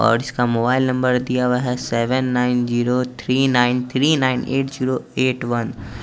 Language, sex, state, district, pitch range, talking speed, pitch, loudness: Hindi, male, Chandigarh, Chandigarh, 120-130 Hz, 190 wpm, 125 Hz, -19 LUFS